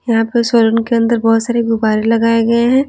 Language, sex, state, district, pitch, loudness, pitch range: Hindi, female, Bihar, Patna, 230 Hz, -13 LUFS, 225-235 Hz